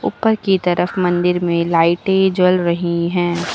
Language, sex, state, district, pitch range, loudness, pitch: Hindi, female, Uttar Pradesh, Lucknow, 170-190 Hz, -16 LUFS, 175 Hz